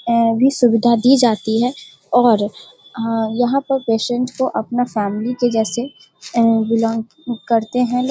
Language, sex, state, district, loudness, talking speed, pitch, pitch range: Hindi, female, Bihar, Darbhanga, -17 LUFS, 155 wpm, 235 Hz, 225-250 Hz